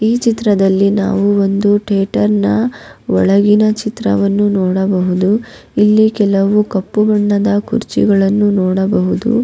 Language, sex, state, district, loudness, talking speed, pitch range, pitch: Kannada, female, Karnataka, Raichur, -13 LUFS, 90 wpm, 190-210 Hz, 205 Hz